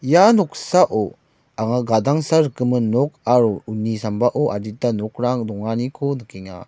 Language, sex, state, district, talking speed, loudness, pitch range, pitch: Garo, male, Meghalaya, West Garo Hills, 115 wpm, -19 LUFS, 110-140 Hz, 120 Hz